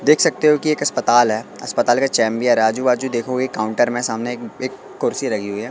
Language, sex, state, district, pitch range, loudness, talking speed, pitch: Hindi, male, Madhya Pradesh, Katni, 115-130 Hz, -18 LUFS, 230 wpm, 120 Hz